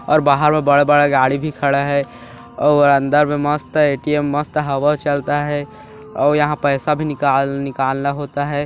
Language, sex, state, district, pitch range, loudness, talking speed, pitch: Hindi, male, Chhattisgarh, Bilaspur, 140-150 Hz, -17 LUFS, 185 wpm, 145 Hz